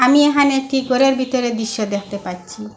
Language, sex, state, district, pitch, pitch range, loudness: Bengali, female, Assam, Hailakandi, 250 Hz, 215-270 Hz, -17 LUFS